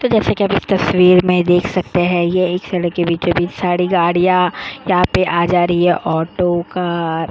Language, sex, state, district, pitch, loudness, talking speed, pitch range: Hindi, female, Goa, North and South Goa, 175 Hz, -15 LUFS, 205 wpm, 175-180 Hz